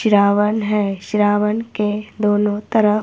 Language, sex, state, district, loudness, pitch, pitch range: Hindi, female, Himachal Pradesh, Shimla, -18 LUFS, 210 Hz, 205-215 Hz